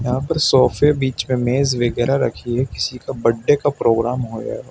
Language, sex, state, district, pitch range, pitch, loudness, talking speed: Hindi, male, Uttar Pradesh, Shamli, 120-135 Hz, 125 Hz, -18 LUFS, 215 wpm